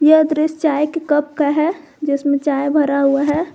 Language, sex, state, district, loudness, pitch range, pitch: Hindi, female, Jharkhand, Garhwa, -17 LUFS, 285-310 Hz, 295 Hz